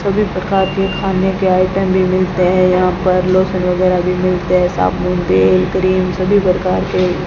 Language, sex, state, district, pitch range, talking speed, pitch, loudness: Hindi, female, Rajasthan, Bikaner, 180-190 Hz, 190 wpm, 185 Hz, -14 LUFS